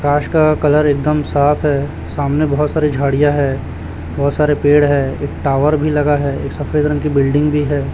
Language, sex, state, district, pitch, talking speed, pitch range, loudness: Hindi, male, Chhattisgarh, Raipur, 145 Hz, 205 wpm, 140-150 Hz, -15 LUFS